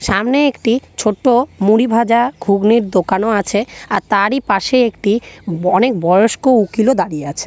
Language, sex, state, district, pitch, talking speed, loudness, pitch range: Bengali, female, West Bengal, North 24 Parganas, 220 Hz, 145 wpm, -14 LUFS, 195-245 Hz